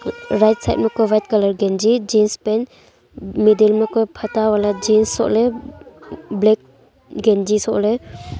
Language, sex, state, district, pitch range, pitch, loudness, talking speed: Wancho, female, Arunachal Pradesh, Longding, 210-225 Hz, 215 Hz, -17 LUFS, 135 wpm